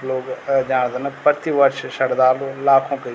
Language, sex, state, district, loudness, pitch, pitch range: Garhwali, male, Uttarakhand, Tehri Garhwal, -18 LUFS, 135 Hz, 130-140 Hz